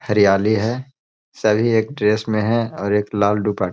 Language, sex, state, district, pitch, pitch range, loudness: Hindi, male, Bihar, Gaya, 105 Hz, 105-115 Hz, -18 LUFS